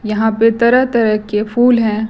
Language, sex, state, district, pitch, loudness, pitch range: Hindi, female, Chhattisgarh, Raipur, 225 Hz, -13 LUFS, 215-235 Hz